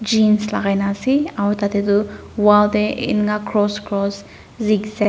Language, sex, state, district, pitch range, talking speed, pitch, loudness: Nagamese, female, Nagaland, Dimapur, 205-215 Hz, 155 wpm, 210 Hz, -18 LUFS